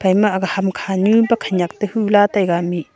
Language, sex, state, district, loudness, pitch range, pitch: Wancho, female, Arunachal Pradesh, Longding, -17 LUFS, 185-210 Hz, 195 Hz